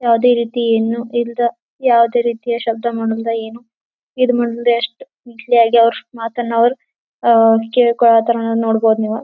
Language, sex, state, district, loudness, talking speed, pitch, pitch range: Kannada, female, Karnataka, Belgaum, -15 LUFS, 115 wpm, 235 Hz, 230-240 Hz